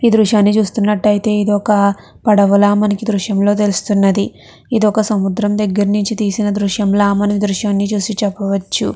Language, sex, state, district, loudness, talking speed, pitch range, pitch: Telugu, female, Andhra Pradesh, Chittoor, -14 LUFS, 120 wpm, 200-210 Hz, 205 Hz